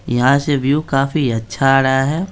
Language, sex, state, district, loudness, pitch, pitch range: Hindi, male, Bihar, Patna, -16 LUFS, 135 Hz, 130-145 Hz